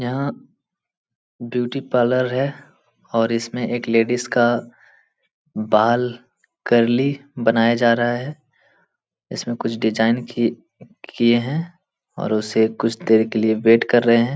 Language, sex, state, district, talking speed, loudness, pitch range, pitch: Hindi, male, Bihar, Jahanabad, 135 wpm, -19 LUFS, 115-125 Hz, 120 Hz